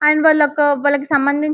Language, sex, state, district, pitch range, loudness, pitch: Telugu, female, Telangana, Karimnagar, 285-300 Hz, -15 LUFS, 295 Hz